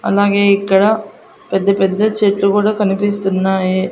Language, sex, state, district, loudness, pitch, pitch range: Telugu, female, Andhra Pradesh, Annamaya, -14 LUFS, 200 Hz, 195-205 Hz